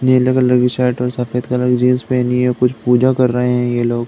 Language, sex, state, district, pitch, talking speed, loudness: Hindi, male, Uttar Pradesh, Deoria, 125 Hz, 265 wpm, -15 LUFS